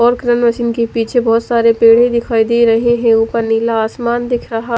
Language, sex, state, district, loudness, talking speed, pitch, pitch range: Hindi, female, Punjab, Fazilka, -13 LUFS, 190 wpm, 235 Hz, 230-240 Hz